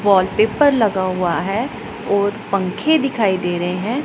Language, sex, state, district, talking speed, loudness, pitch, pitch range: Hindi, female, Punjab, Pathankot, 150 wpm, -18 LUFS, 205 Hz, 185-235 Hz